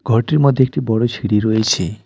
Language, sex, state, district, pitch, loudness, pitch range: Bengali, male, West Bengal, Alipurduar, 115 Hz, -16 LUFS, 105-130 Hz